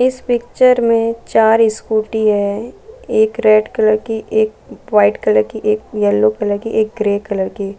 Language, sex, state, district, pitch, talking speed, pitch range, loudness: Hindi, female, Chhattisgarh, Balrampur, 215 Hz, 175 wpm, 205-230 Hz, -15 LUFS